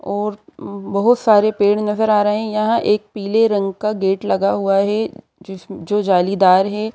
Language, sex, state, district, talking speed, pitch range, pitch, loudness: Hindi, female, Madhya Pradesh, Bhopal, 170 wpm, 195-215 Hz, 205 Hz, -17 LUFS